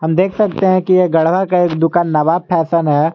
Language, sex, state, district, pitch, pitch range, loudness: Hindi, male, Jharkhand, Garhwa, 175 Hz, 165-185 Hz, -14 LUFS